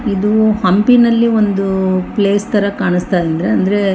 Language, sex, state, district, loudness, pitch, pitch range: Kannada, female, Karnataka, Bellary, -13 LUFS, 200 Hz, 190-215 Hz